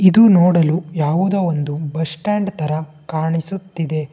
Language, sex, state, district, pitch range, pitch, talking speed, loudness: Kannada, male, Karnataka, Bangalore, 155-185 Hz, 160 Hz, 115 wpm, -18 LUFS